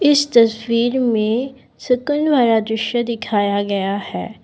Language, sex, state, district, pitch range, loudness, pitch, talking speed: Hindi, female, Assam, Kamrup Metropolitan, 220-255 Hz, -18 LUFS, 235 Hz, 120 wpm